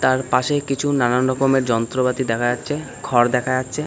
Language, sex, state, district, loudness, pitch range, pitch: Bengali, male, West Bengal, Kolkata, -19 LUFS, 125-135 Hz, 130 Hz